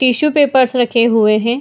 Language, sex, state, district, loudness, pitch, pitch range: Hindi, female, Bihar, Madhepura, -13 LUFS, 245 Hz, 235-260 Hz